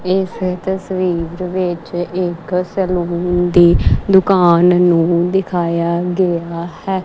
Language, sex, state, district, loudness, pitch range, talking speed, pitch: Punjabi, female, Punjab, Kapurthala, -15 LUFS, 170-185 Hz, 95 wpm, 180 Hz